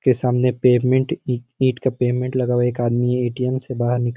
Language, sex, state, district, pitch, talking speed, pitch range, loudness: Hindi, male, Bihar, Sitamarhi, 125 Hz, 230 wpm, 120-130 Hz, -20 LUFS